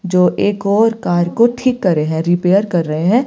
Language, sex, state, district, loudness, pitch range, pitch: Hindi, female, Himachal Pradesh, Shimla, -15 LUFS, 175-225 Hz, 185 Hz